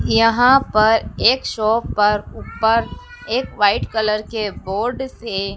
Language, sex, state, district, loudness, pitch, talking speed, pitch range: Hindi, female, Madhya Pradesh, Dhar, -18 LUFS, 220 Hz, 130 wpm, 210-245 Hz